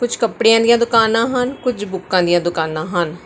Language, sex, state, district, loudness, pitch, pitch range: Punjabi, female, Karnataka, Bangalore, -16 LUFS, 225 Hz, 175-235 Hz